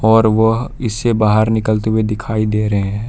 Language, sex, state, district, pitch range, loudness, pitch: Hindi, male, Jharkhand, Palamu, 105-110 Hz, -15 LUFS, 110 Hz